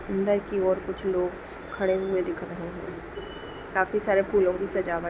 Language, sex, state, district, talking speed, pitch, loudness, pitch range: Hindi, female, Bihar, Sitamarhi, 175 wpm, 190 Hz, -27 LUFS, 180-200 Hz